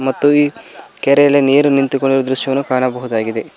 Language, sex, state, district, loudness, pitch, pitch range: Kannada, male, Karnataka, Koppal, -14 LUFS, 135 Hz, 130-140 Hz